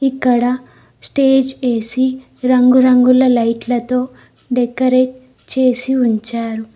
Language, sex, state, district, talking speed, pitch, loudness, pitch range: Telugu, female, Telangana, Mahabubabad, 70 wpm, 255 Hz, -15 LUFS, 240-260 Hz